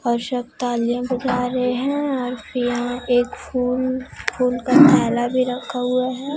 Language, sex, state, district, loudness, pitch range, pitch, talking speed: Hindi, female, Jharkhand, Deoghar, -20 LUFS, 245-255 Hz, 250 Hz, 160 wpm